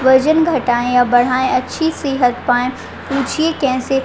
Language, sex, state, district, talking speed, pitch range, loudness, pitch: Hindi, female, Uttar Pradesh, Deoria, 150 wpm, 250-280 Hz, -15 LUFS, 260 Hz